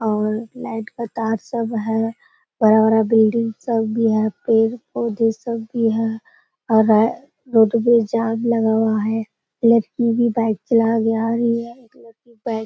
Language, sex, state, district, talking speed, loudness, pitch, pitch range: Hindi, female, Bihar, Sitamarhi, 155 wpm, -19 LUFS, 225 Hz, 220-235 Hz